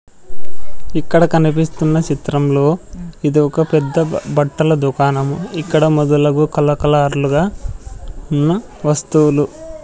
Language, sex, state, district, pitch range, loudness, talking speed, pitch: Telugu, male, Andhra Pradesh, Sri Satya Sai, 145-160 Hz, -15 LUFS, 85 wpm, 150 Hz